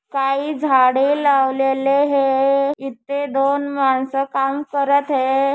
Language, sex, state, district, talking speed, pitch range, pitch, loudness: Marathi, female, Maharashtra, Chandrapur, 110 wpm, 270-280 Hz, 275 Hz, -18 LUFS